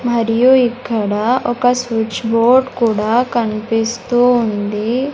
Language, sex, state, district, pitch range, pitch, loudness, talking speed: Telugu, male, Andhra Pradesh, Sri Satya Sai, 225-245 Hz, 235 Hz, -15 LUFS, 95 wpm